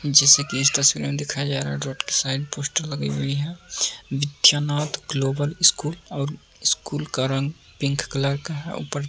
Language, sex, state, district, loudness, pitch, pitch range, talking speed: Hindi, male, Uttar Pradesh, Jyotiba Phule Nagar, -22 LUFS, 140 Hz, 140-150 Hz, 200 wpm